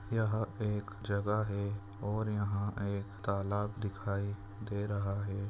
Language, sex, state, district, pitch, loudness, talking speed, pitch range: Hindi, male, Maharashtra, Aurangabad, 100 Hz, -36 LUFS, 130 wpm, 100-105 Hz